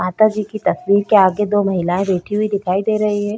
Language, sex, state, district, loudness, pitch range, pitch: Hindi, female, Uttar Pradesh, Budaun, -17 LUFS, 190-210 Hz, 205 Hz